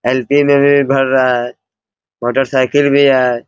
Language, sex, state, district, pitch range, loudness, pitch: Hindi, male, Bihar, Bhagalpur, 125-140 Hz, -12 LUFS, 135 Hz